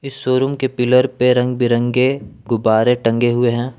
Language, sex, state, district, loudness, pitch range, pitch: Hindi, male, Jharkhand, Palamu, -16 LUFS, 120-130 Hz, 125 Hz